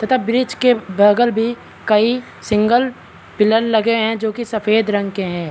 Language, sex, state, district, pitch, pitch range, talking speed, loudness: Hindi, male, Bihar, Vaishali, 225 Hz, 210-240 Hz, 175 wpm, -16 LUFS